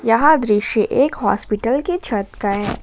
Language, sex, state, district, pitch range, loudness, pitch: Hindi, female, Jharkhand, Ranchi, 210-275 Hz, -18 LUFS, 230 Hz